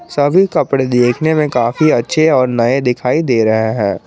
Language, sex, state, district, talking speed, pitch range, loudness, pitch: Hindi, male, Jharkhand, Garhwa, 175 wpm, 120-155 Hz, -13 LUFS, 130 Hz